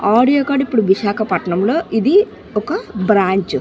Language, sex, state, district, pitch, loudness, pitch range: Telugu, female, Andhra Pradesh, Visakhapatnam, 215 Hz, -16 LUFS, 195-275 Hz